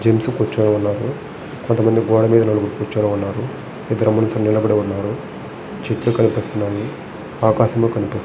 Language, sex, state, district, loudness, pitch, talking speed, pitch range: Telugu, male, Andhra Pradesh, Srikakulam, -18 LUFS, 110 Hz, 125 wpm, 105-115 Hz